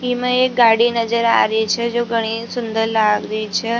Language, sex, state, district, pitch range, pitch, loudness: Rajasthani, female, Rajasthan, Nagaur, 220-240 Hz, 230 Hz, -17 LUFS